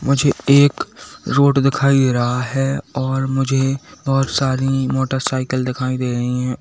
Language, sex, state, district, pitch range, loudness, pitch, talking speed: Hindi, male, Uttar Pradesh, Saharanpur, 130-135 Hz, -17 LUFS, 135 Hz, 145 wpm